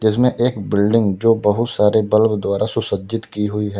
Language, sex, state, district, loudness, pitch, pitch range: Hindi, male, Uttar Pradesh, Lalitpur, -17 LUFS, 105 Hz, 105-115 Hz